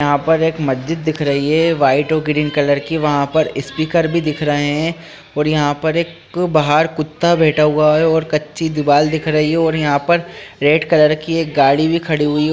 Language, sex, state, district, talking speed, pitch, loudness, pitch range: Hindi, male, Bihar, Lakhisarai, 215 wpm, 155 Hz, -15 LUFS, 150-160 Hz